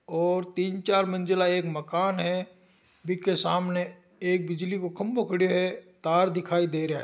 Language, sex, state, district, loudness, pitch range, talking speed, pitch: Marwari, male, Rajasthan, Nagaur, -27 LUFS, 175-185 Hz, 180 wpm, 180 Hz